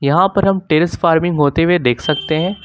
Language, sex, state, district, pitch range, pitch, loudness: Hindi, male, Uttar Pradesh, Lucknow, 155-185 Hz, 165 Hz, -15 LUFS